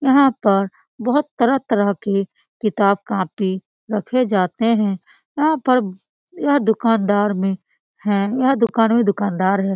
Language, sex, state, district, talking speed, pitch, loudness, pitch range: Hindi, female, Bihar, Lakhisarai, 125 wpm, 215 Hz, -19 LUFS, 195-255 Hz